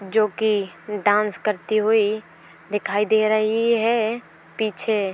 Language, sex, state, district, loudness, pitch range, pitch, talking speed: Hindi, female, Uttar Pradesh, Etah, -21 LUFS, 205-220 Hz, 215 Hz, 105 wpm